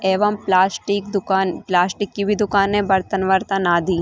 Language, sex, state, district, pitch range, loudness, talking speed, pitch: Hindi, female, Chhattisgarh, Rajnandgaon, 190-205 Hz, -19 LUFS, 180 wpm, 195 Hz